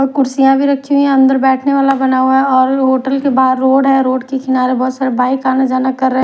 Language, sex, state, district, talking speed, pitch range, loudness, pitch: Hindi, female, Odisha, Khordha, 270 wpm, 260-270 Hz, -12 LUFS, 265 Hz